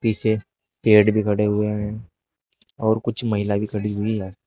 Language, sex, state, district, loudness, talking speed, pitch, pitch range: Hindi, male, Uttar Pradesh, Shamli, -21 LUFS, 175 wpm, 105 Hz, 105-110 Hz